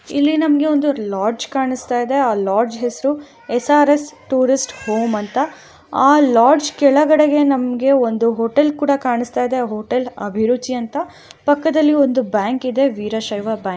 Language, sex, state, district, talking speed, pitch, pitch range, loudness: Kannada, female, Karnataka, Raichur, 120 wpm, 260 Hz, 230-290 Hz, -17 LUFS